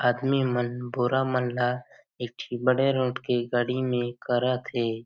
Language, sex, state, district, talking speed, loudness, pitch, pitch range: Chhattisgarhi, male, Chhattisgarh, Jashpur, 165 wpm, -26 LUFS, 125 Hz, 120-130 Hz